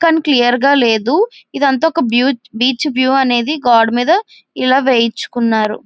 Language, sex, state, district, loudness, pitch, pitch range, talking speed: Telugu, female, Andhra Pradesh, Visakhapatnam, -13 LUFS, 260 Hz, 240-295 Hz, 145 wpm